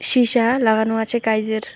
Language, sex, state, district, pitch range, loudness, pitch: Bengali, female, West Bengal, Alipurduar, 220-240 Hz, -17 LUFS, 225 Hz